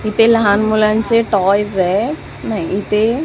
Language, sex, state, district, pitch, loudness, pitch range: Marathi, female, Maharashtra, Mumbai Suburban, 215 Hz, -15 LUFS, 200-225 Hz